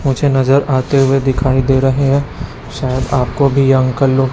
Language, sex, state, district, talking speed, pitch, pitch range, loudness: Hindi, male, Chhattisgarh, Raipur, 195 wpm, 135 Hz, 130-135 Hz, -13 LUFS